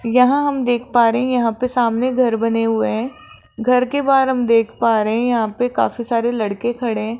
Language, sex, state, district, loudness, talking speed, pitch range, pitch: Hindi, female, Rajasthan, Jaipur, -17 LUFS, 235 wpm, 230-250 Hz, 240 Hz